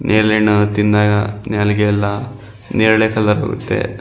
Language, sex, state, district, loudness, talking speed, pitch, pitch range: Kannada, male, Karnataka, Shimoga, -15 LUFS, 105 wpm, 105 Hz, 105-110 Hz